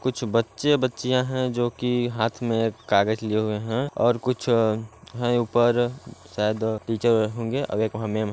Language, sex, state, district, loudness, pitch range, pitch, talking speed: Hindi, male, Chhattisgarh, Balrampur, -24 LUFS, 110-125 Hz, 115 Hz, 145 wpm